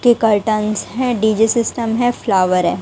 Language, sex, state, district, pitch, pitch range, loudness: Hindi, female, Haryana, Jhajjar, 225 Hz, 210-235 Hz, -16 LUFS